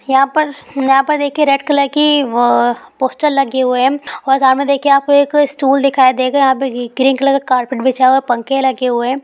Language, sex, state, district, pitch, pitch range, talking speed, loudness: Hindi, female, Bihar, Darbhanga, 270 Hz, 260-280 Hz, 205 wpm, -13 LUFS